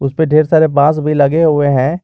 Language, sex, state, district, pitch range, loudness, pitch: Hindi, male, Jharkhand, Garhwa, 145-160 Hz, -12 LUFS, 150 Hz